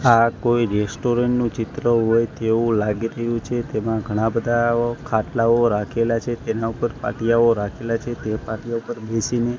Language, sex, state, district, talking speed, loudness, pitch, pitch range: Gujarati, male, Gujarat, Gandhinagar, 155 wpm, -21 LUFS, 115 Hz, 110-120 Hz